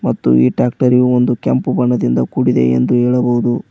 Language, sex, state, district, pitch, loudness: Kannada, male, Karnataka, Koppal, 120 Hz, -14 LUFS